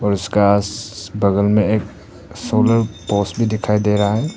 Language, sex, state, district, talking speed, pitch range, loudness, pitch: Hindi, male, Arunachal Pradesh, Papum Pare, 150 wpm, 100-110 Hz, -17 LUFS, 105 Hz